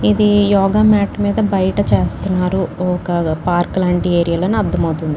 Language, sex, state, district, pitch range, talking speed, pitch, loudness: Telugu, female, Telangana, Nalgonda, 175-200 Hz, 140 wpm, 185 Hz, -15 LUFS